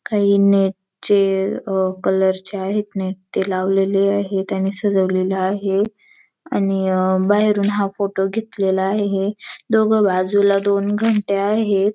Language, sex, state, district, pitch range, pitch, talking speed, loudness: Marathi, female, Maharashtra, Dhule, 190-205 Hz, 195 Hz, 130 wpm, -18 LUFS